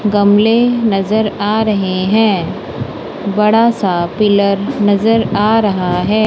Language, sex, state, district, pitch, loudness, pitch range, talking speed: Hindi, female, Punjab, Kapurthala, 210 Hz, -13 LUFS, 200-220 Hz, 115 wpm